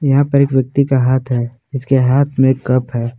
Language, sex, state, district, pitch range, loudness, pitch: Hindi, male, Jharkhand, Palamu, 125-140 Hz, -15 LUFS, 130 Hz